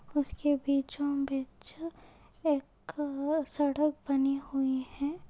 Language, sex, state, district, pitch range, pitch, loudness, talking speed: Hindi, female, Goa, North and South Goa, 275-295 Hz, 285 Hz, -32 LUFS, 90 wpm